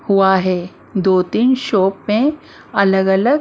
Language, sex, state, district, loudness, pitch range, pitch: Hindi, female, Maharashtra, Mumbai Suburban, -16 LUFS, 190-255 Hz, 195 Hz